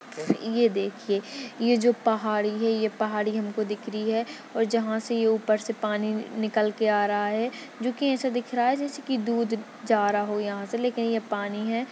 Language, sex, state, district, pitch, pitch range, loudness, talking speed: Hindi, male, Maharashtra, Dhule, 225 Hz, 215-240 Hz, -26 LUFS, 205 wpm